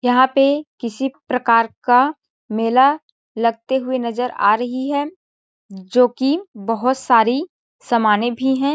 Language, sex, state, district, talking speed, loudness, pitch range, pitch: Hindi, female, Chhattisgarh, Balrampur, 135 wpm, -18 LUFS, 230-275 Hz, 250 Hz